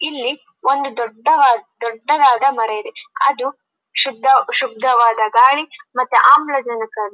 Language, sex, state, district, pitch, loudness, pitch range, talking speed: Kannada, female, Karnataka, Dharwad, 265 Hz, -16 LUFS, 235-290 Hz, 90 wpm